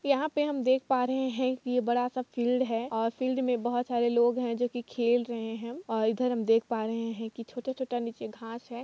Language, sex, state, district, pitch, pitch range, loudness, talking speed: Hindi, female, Jharkhand, Jamtara, 245 Hz, 230-255 Hz, -30 LUFS, 260 wpm